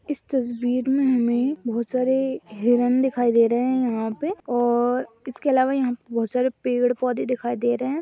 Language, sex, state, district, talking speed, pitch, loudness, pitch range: Hindi, female, Jharkhand, Sahebganj, 195 wpm, 250 Hz, -22 LUFS, 240-260 Hz